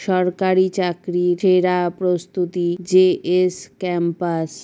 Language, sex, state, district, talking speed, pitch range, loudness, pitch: Bengali, female, West Bengal, Paschim Medinipur, 105 wpm, 175-185 Hz, -19 LUFS, 180 Hz